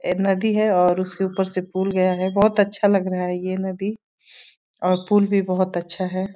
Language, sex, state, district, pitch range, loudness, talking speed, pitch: Hindi, female, Uttar Pradesh, Deoria, 185-200 Hz, -21 LUFS, 215 wpm, 190 Hz